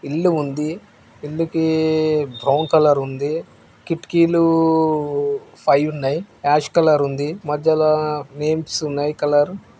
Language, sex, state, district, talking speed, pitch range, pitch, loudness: Telugu, male, Telangana, Nalgonda, 110 wpm, 145-160 Hz, 155 Hz, -19 LUFS